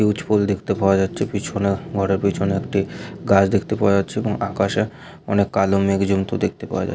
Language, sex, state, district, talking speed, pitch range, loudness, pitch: Bengali, male, West Bengal, Malda, 180 wpm, 95-100 Hz, -20 LUFS, 100 Hz